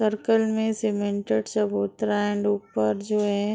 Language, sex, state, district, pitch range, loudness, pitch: Hindi, female, Uttar Pradesh, Deoria, 200-215 Hz, -25 LUFS, 205 Hz